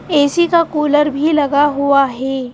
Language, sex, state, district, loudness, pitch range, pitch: Hindi, female, Madhya Pradesh, Bhopal, -14 LUFS, 280-300 Hz, 290 Hz